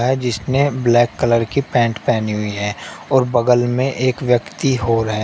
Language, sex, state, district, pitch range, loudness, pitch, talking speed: Hindi, male, Uttar Pradesh, Shamli, 115-130 Hz, -17 LUFS, 120 Hz, 185 wpm